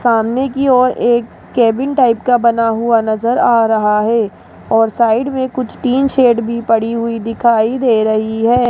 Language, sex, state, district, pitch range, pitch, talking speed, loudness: Hindi, female, Rajasthan, Jaipur, 225-250 Hz, 235 Hz, 180 wpm, -14 LUFS